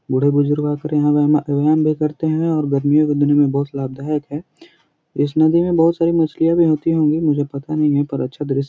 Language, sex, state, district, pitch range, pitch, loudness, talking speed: Hindi, male, Bihar, Jahanabad, 145-160 Hz, 150 Hz, -17 LUFS, 235 wpm